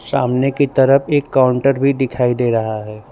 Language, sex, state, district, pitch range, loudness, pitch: Hindi, male, Gujarat, Valsad, 120-135 Hz, -15 LUFS, 130 Hz